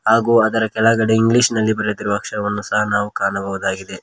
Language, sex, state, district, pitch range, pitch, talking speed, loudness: Kannada, male, Karnataka, Koppal, 100-110 Hz, 105 Hz, 150 wpm, -17 LUFS